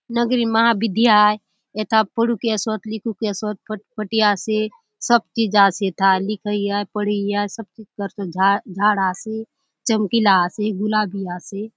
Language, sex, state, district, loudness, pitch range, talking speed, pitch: Halbi, female, Chhattisgarh, Bastar, -20 LUFS, 200-225 Hz, 145 wpm, 210 Hz